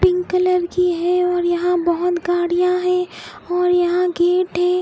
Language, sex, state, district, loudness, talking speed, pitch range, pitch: Hindi, female, Odisha, Khordha, -18 LUFS, 160 wpm, 350-360 Hz, 360 Hz